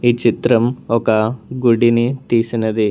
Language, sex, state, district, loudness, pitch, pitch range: Telugu, male, Telangana, Hyderabad, -16 LUFS, 115 Hz, 115-120 Hz